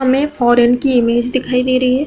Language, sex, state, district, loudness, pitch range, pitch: Hindi, female, Uttar Pradesh, Hamirpur, -14 LUFS, 240-260 Hz, 255 Hz